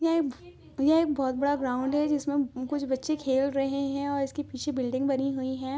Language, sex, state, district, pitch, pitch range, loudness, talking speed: Hindi, female, Andhra Pradesh, Anantapur, 275 Hz, 260-290 Hz, -28 LUFS, 210 wpm